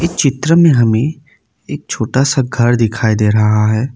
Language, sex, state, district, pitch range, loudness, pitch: Hindi, male, Assam, Kamrup Metropolitan, 110-145 Hz, -13 LUFS, 125 Hz